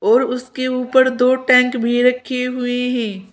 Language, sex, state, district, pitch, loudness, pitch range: Hindi, female, Uttar Pradesh, Saharanpur, 250 Hz, -17 LUFS, 245-255 Hz